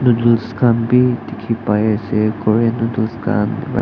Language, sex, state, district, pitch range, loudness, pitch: Nagamese, male, Nagaland, Dimapur, 110-120 Hz, -16 LUFS, 115 Hz